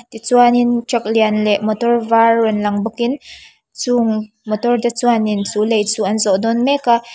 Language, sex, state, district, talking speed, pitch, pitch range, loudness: Mizo, female, Mizoram, Aizawl, 185 wpm, 230 Hz, 215-240 Hz, -16 LUFS